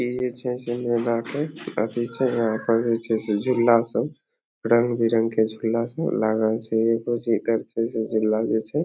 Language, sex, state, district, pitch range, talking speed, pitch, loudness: Maithili, male, Bihar, Samastipur, 110-120 Hz, 100 wpm, 115 Hz, -23 LUFS